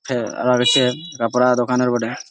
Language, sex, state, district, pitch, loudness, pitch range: Bengali, male, West Bengal, Malda, 125 Hz, -18 LUFS, 120-125 Hz